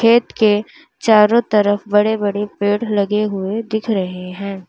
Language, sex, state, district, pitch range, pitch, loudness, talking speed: Hindi, female, Uttar Pradesh, Lalitpur, 205-220 Hz, 210 Hz, -17 LUFS, 155 wpm